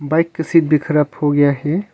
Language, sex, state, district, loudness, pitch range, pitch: Hindi, male, Arunachal Pradesh, Longding, -16 LUFS, 145-165 Hz, 150 Hz